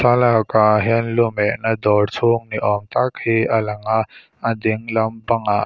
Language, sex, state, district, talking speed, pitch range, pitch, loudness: Mizo, male, Mizoram, Aizawl, 180 wpm, 105-115 Hz, 110 Hz, -18 LUFS